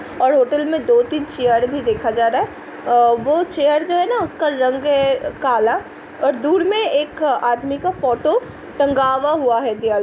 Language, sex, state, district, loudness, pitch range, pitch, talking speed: Hindi, female, Uttar Pradesh, Hamirpur, -17 LUFS, 240-305 Hz, 280 Hz, 195 wpm